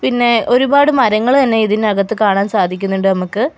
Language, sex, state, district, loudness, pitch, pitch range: Malayalam, female, Kerala, Kollam, -13 LUFS, 220 Hz, 195-245 Hz